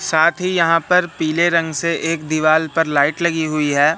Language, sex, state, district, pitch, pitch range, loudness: Hindi, male, Madhya Pradesh, Katni, 165 Hz, 155-170 Hz, -17 LUFS